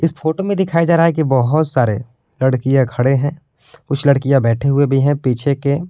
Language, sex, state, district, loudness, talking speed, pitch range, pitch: Hindi, male, Jharkhand, Palamu, -16 LUFS, 225 wpm, 130-155 Hz, 140 Hz